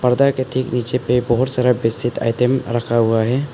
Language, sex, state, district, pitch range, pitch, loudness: Hindi, male, Arunachal Pradesh, Papum Pare, 120-130 Hz, 125 Hz, -18 LUFS